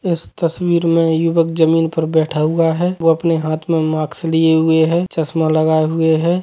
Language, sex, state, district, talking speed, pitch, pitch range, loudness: Hindi, male, Chhattisgarh, Sukma, 195 wpm, 165 Hz, 160-170 Hz, -15 LUFS